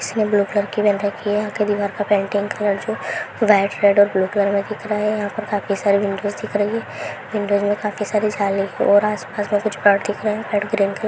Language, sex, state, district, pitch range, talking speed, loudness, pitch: Hindi, female, Bihar, Saharsa, 200-210 Hz, 190 wpm, -19 LUFS, 205 Hz